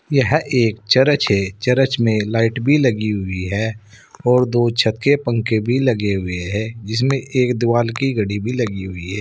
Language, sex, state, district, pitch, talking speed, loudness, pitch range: Hindi, male, Uttar Pradesh, Saharanpur, 115 Hz, 190 wpm, -18 LUFS, 105-130 Hz